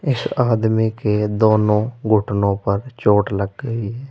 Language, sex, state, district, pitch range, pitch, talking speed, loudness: Hindi, male, Uttar Pradesh, Saharanpur, 105-115 Hz, 110 Hz, 145 wpm, -18 LUFS